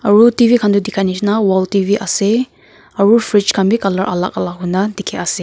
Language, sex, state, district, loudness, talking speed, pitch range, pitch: Nagamese, female, Nagaland, Kohima, -14 LUFS, 220 wpm, 190-215 Hz, 200 Hz